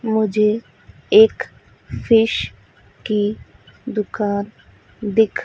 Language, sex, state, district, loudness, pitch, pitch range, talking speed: Hindi, female, Madhya Pradesh, Dhar, -18 LUFS, 220 Hz, 210-225 Hz, 65 wpm